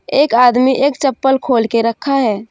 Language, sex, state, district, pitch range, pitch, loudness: Hindi, female, Jharkhand, Deoghar, 230-275 Hz, 260 Hz, -13 LUFS